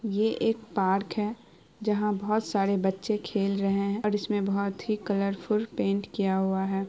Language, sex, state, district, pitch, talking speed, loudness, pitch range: Hindi, female, Bihar, Araria, 200 Hz, 175 wpm, -28 LUFS, 195-215 Hz